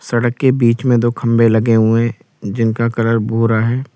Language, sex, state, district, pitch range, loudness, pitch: Hindi, male, Uttar Pradesh, Lalitpur, 115-120 Hz, -15 LUFS, 115 Hz